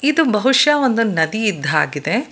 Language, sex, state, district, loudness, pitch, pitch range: Kannada, female, Karnataka, Bangalore, -16 LUFS, 230 Hz, 160-275 Hz